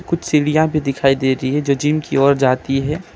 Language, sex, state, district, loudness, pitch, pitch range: Hindi, male, West Bengal, Alipurduar, -17 LUFS, 140 Hz, 135-155 Hz